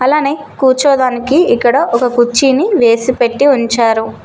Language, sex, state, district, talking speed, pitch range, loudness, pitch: Telugu, female, Telangana, Mahabubabad, 115 wpm, 240-280 Hz, -11 LUFS, 255 Hz